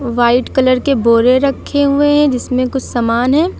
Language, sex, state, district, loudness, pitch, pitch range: Hindi, female, Uttar Pradesh, Lucknow, -13 LUFS, 255 Hz, 245-280 Hz